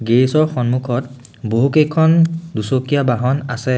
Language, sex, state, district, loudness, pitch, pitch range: Assamese, male, Assam, Sonitpur, -16 LUFS, 130 Hz, 125-150 Hz